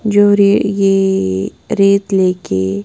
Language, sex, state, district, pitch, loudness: Hindi, female, Punjab, Kapurthala, 195 Hz, -13 LUFS